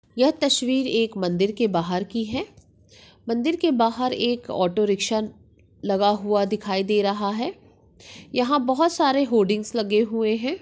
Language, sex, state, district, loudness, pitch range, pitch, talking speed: Hindi, female, Maharashtra, Sindhudurg, -23 LUFS, 205-255 Hz, 225 Hz, 155 wpm